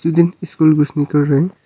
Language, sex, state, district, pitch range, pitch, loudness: Hindi, male, Arunachal Pradesh, Longding, 145-170 Hz, 155 Hz, -15 LUFS